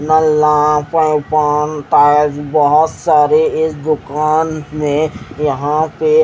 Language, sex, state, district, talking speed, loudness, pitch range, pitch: Hindi, male, Haryana, Jhajjar, 85 wpm, -14 LUFS, 150-155 Hz, 150 Hz